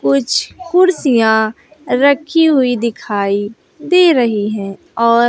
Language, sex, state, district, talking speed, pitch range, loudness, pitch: Hindi, female, Bihar, West Champaran, 100 wpm, 215-305 Hz, -14 LUFS, 245 Hz